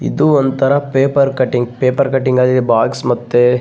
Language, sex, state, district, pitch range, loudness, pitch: Kannada, male, Karnataka, Bellary, 125-135 Hz, -14 LUFS, 130 Hz